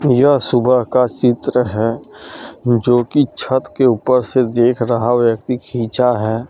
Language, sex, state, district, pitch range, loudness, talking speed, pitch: Hindi, male, Jharkhand, Deoghar, 115-125 Hz, -15 LUFS, 150 wpm, 125 Hz